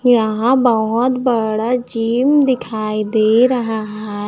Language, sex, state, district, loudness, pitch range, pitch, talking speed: Hindi, female, Chhattisgarh, Raipur, -16 LUFS, 220-250 Hz, 230 Hz, 100 wpm